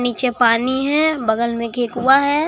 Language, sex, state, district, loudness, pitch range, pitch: Hindi, male, Bihar, Katihar, -17 LUFS, 235-280 Hz, 250 Hz